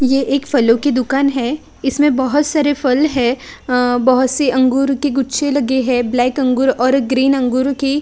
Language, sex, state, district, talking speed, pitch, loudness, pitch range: Hindi, female, Chhattisgarh, Kabirdham, 185 wpm, 265 Hz, -15 LUFS, 255-275 Hz